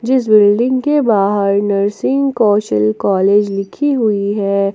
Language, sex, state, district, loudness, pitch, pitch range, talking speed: Hindi, female, Jharkhand, Ranchi, -14 LUFS, 205 Hz, 200-240 Hz, 125 wpm